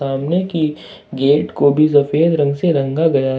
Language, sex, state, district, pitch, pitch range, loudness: Hindi, male, Jharkhand, Ranchi, 145 Hz, 140-160 Hz, -15 LUFS